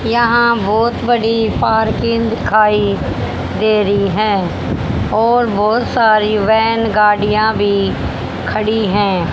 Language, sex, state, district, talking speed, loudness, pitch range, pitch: Hindi, female, Haryana, Charkhi Dadri, 105 wpm, -14 LUFS, 205-225 Hz, 215 Hz